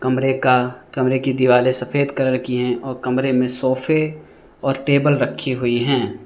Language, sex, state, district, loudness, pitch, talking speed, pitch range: Hindi, male, Arunachal Pradesh, Lower Dibang Valley, -19 LUFS, 130 Hz, 175 wpm, 125-135 Hz